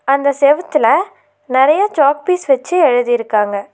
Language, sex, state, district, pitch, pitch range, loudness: Tamil, female, Tamil Nadu, Nilgiris, 280 Hz, 245-305 Hz, -14 LUFS